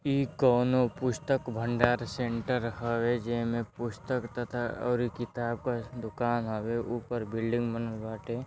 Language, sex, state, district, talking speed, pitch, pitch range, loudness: Hindi, male, Uttar Pradesh, Deoria, 130 wpm, 120 Hz, 115-125 Hz, -31 LUFS